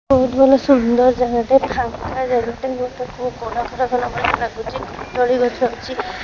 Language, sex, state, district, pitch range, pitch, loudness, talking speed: Odia, female, Odisha, Khordha, 240-260 Hz, 250 Hz, -18 LUFS, 105 wpm